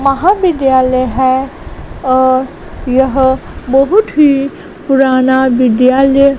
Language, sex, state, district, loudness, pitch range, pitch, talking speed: Hindi, female, Gujarat, Gandhinagar, -11 LUFS, 255-275 Hz, 265 Hz, 75 wpm